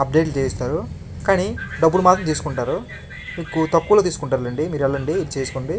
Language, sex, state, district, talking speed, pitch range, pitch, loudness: Telugu, male, Andhra Pradesh, Krishna, 155 wpm, 135-165 Hz, 155 Hz, -20 LUFS